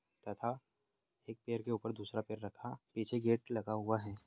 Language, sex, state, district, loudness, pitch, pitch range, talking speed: Hindi, male, Bihar, Bhagalpur, -40 LUFS, 110 Hz, 110-115 Hz, 180 wpm